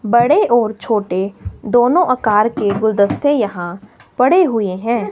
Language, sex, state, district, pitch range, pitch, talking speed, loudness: Hindi, female, Himachal Pradesh, Shimla, 200-240 Hz, 220 Hz, 130 wpm, -15 LUFS